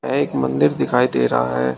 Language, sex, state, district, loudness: Hindi, male, Uttar Pradesh, Shamli, -18 LUFS